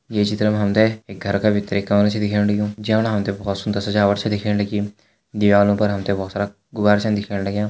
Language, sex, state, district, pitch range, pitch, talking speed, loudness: Hindi, male, Uttarakhand, Uttarkashi, 100-105 Hz, 105 Hz, 210 wpm, -20 LUFS